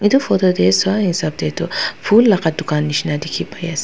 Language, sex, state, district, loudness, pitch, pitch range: Nagamese, female, Nagaland, Dimapur, -16 LUFS, 165 Hz, 150-195 Hz